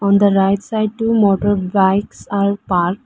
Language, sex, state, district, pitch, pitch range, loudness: English, female, Arunachal Pradesh, Lower Dibang Valley, 200 Hz, 195-205 Hz, -16 LUFS